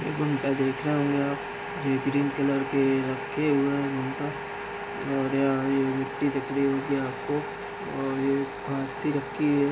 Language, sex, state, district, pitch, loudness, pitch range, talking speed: Hindi, male, Chhattisgarh, Bilaspur, 135 Hz, -27 LUFS, 135-140 Hz, 135 wpm